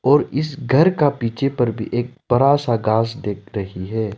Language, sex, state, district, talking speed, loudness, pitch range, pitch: Hindi, male, Arunachal Pradesh, Lower Dibang Valley, 200 wpm, -19 LUFS, 110-140 Hz, 120 Hz